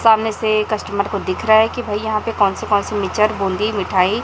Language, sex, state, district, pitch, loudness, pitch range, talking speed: Hindi, male, Chhattisgarh, Raipur, 215 Hz, -18 LUFS, 200-220 Hz, 255 wpm